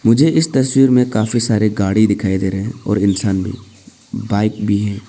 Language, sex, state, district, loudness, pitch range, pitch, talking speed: Hindi, male, Arunachal Pradesh, Papum Pare, -16 LUFS, 100-120 Hz, 110 Hz, 200 wpm